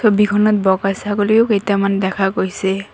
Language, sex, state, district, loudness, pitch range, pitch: Assamese, female, Assam, Kamrup Metropolitan, -16 LUFS, 195-210 Hz, 200 Hz